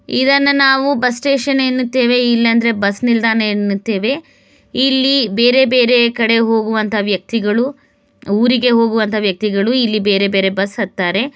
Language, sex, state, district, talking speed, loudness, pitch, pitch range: Kannada, female, Karnataka, Bellary, 125 wpm, -14 LUFS, 230 Hz, 210-255 Hz